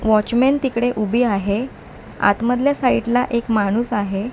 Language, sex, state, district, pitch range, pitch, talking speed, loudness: Marathi, female, Maharashtra, Mumbai Suburban, 210-245 Hz, 235 Hz, 150 wpm, -19 LUFS